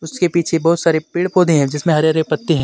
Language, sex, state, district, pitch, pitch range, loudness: Hindi, male, Jharkhand, Deoghar, 165 Hz, 155-170 Hz, -16 LUFS